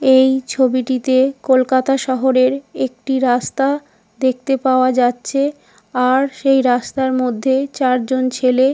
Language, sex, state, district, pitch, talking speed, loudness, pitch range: Bengali, female, West Bengal, Paschim Medinipur, 260 Hz, 105 wpm, -16 LUFS, 255-270 Hz